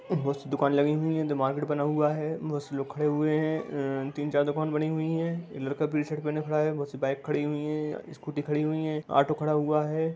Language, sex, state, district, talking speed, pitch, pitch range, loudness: Hindi, female, Bihar, Darbhanga, 260 wpm, 150 Hz, 145-155 Hz, -29 LUFS